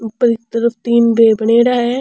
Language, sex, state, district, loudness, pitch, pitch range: Rajasthani, female, Rajasthan, Churu, -13 LUFS, 235 Hz, 230-240 Hz